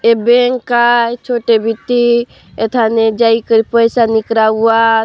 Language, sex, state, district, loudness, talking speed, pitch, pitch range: Halbi, female, Chhattisgarh, Bastar, -12 LUFS, 120 wpm, 230 Hz, 225-240 Hz